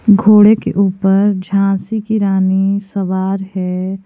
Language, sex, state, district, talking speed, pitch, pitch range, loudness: Hindi, female, Himachal Pradesh, Shimla, 120 wpm, 195 Hz, 190-205 Hz, -14 LUFS